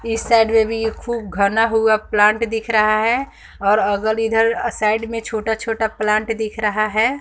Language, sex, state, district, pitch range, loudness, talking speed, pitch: Hindi, female, Bihar, West Champaran, 215-225 Hz, -18 LUFS, 185 wpm, 220 Hz